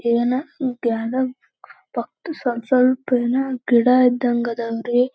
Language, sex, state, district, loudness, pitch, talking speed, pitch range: Kannada, female, Karnataka, Belgaum, -20 LUFS, 250 Hz, 105 wpm, 240-255 Hz